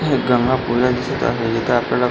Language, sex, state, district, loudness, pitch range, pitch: Marathi, male, Maharashtra, Pune, -18 LUFS, 120-130 Hz, 125 Hz